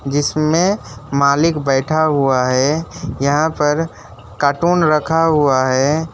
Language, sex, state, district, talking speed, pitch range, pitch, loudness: Hindi, male, West Bengal, Alipurduar, 105 wpm, 135-160 Hz, 150 Hz, -16 LUFS